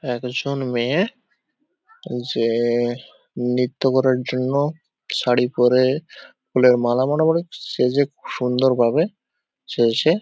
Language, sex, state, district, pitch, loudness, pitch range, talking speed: Bengali, male, West Bengal, Paschim Medinipur, 130 Hz, -20 LUFS, 125-165 Hz, 100 wpm